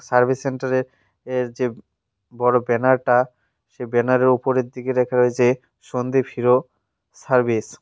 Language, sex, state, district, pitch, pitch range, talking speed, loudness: Bengali, male, West Bengal, Cooch Behar, 125 Hz, 120-130 Hz, 120 wpm, -20 LUFS